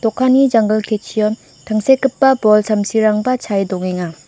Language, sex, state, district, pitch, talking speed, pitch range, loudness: Garo, female, Meghalaya, West Garo Hills, 215 Hz, 110 wpm, 210-255 Hz, -15 LUFS